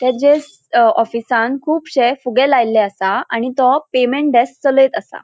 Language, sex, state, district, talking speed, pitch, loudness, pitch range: Konkani, female, Goa, North and South Goa, 150 wpm, 255 Hz, -15 LUFS, 235-280 Hz